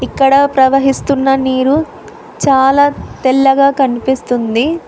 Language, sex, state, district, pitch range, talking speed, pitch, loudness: Telugu, female, Telangana, Hyderabad, 260-275 Hz, 75 wpm, 270 Hz, -12 LUFS